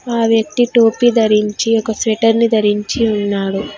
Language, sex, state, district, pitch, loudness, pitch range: Telugu, female, Telangana, Hyderabad, 225 Hz, -14 LUFS, 210-230 Hz